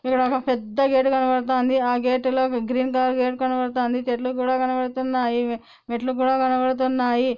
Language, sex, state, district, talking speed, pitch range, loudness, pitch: Telugu, female, Andhra Pradesh, Anantapur, 145 wpm, 250-260 Hz, -22 LUFS, 255 Hz